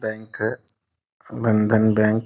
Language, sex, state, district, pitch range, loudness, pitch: Hindi, male, Bihar, Sitamarhi, 105-110 Hz, -21 LUFS, 110 Hz